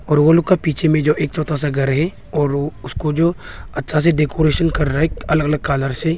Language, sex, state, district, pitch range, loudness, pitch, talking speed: Hindi, male, Arunachal Pradesh, Longding, 145-160 Hz, -17 LUFS, 150 Hz, 250 wpm